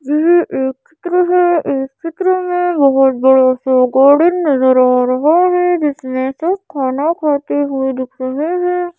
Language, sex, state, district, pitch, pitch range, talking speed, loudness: Hindi, female, Madhya Pradesh, Bhopal, 290 Hz, 265-350 Hz, 155 wpm, -14 LUFS